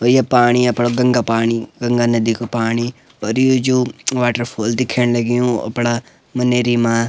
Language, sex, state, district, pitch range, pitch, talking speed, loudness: Garhwali, male, Uttarakhand, Uttarkashi, 115-125 Hz, 120 Hz, 180 wpm, -17 LUFS